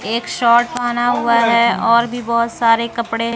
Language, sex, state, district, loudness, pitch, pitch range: Hindi, female, Bihar, West Champaran, -15 LUFS, 235 Hz, 230-240 Hz